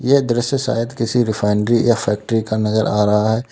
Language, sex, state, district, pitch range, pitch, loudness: Hindi, male, Uttar Pradesh, Lalitpur, 110-120 Hz, 115 Hz, -17 LUFS